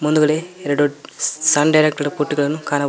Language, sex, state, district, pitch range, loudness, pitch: Kannada, male, Karnataka, Koppal, 145-155 Hz, -18 LUFS, 150 Hz